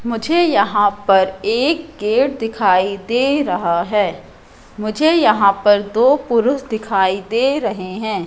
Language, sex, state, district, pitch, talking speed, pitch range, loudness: Hindi, female, Madhya Pradesh, Katni, 215 Hz, 130 wpm, 200-260 Hz, -16 LUFS